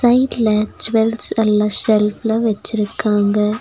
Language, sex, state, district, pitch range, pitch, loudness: Tamil, female, Tamil Nadu, Nilgiris, 210-225 Hz, 215 Hz, -15 LUFS